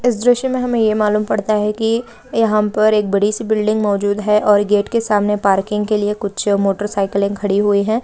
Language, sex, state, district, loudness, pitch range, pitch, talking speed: Hindi, female, Bihar, Samastipur, -16 LUFS, 205-220 Hz, 210 Hz, 215 wpm